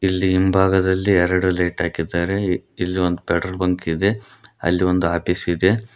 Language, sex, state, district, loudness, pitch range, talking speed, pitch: Kannada, male, Karnataka, Koppal, -20 LUFS, 90-95 Hz, 130 wpm, 90 Hz